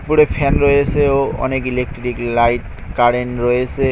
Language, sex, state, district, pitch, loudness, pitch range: Bengali, male, West Bengal, Cooch Behar, 125 Hz, -16 LUFS, 120-140 Hz